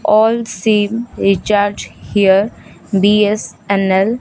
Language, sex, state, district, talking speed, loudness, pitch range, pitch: Odia, female, Odisha, Khordha, 85 wpm, -14 LUFS, 195-220 Hz, 205 Hz